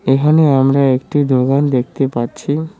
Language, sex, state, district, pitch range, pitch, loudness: Bengali, male, West Bengal, Cooch Behar, 130-150 Hz, 135 Hz, -14 LUFS